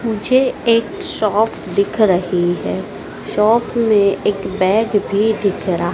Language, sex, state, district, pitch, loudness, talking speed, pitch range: Hindi, female, Madhya Pradesh, Dhar, 210 Hz, -16 LUFS, 130 wpm, 195-225 Hz